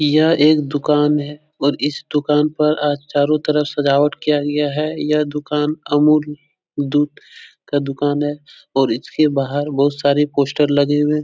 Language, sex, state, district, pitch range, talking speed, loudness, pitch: Hindi, male, Bihar, Jahanabad, 145-150 Hz, 165 wpm, -17 LUFS, 150 Hz